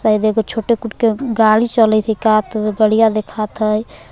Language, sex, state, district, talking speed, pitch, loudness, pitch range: Magahi, female, Jharkhand, Palamu, 190 wpm, 220 Hz, -15 LUFS, 215-225 Hz